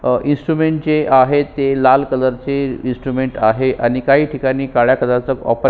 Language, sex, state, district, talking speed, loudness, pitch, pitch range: Marathi, male, Maharashtra, Sindhudurg, 180 wpm, -15 LUFS, 135 Hz, 130-145 Hz